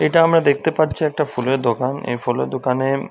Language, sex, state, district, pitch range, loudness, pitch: Bengali, male, West Bengal, Dakshin Dinajpur, 125-155 Hz, -19 LUFS, 135 Hz